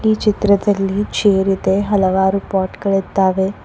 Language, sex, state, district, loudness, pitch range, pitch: Kannada, female, Karnataka, Koppal, -16 LUFS, 190-205 Hz, 195 Hz